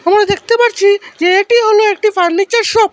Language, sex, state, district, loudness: Bengali, male, Assam, Hailakandi, -11 LUFS